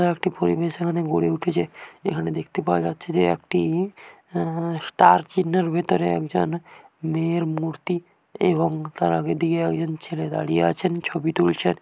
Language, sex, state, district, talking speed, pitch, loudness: Bengali, male, West Bengal, Dakshin Dinajpur, 145 wpm, 165 Hz, -23 LUFS